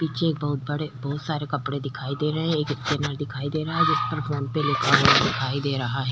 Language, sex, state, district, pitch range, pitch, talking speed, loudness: Hindi, female, Chhattisgarh, Kabirdham, 140-155 Hz, 145 Hz, 235 wpm, -24 LUFS